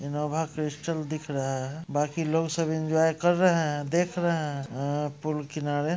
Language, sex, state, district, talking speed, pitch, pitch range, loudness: Hindi, male, Bihar, Muzaffarpur, 170 wpm, 155 Hz, 145-160 Hz, -28 LUFS